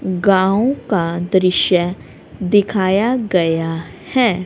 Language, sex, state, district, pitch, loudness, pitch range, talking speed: Hindi, female, Haryana, Rohtak, 185 Hz, -16 LUFS, 175-205 Hz, 80 wpm